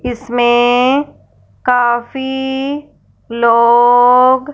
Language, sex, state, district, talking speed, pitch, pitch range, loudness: Hindi, female, Punjab, Fazilka, 40 wpm, 245 Hz, 240-265 Hz, -12 LUFS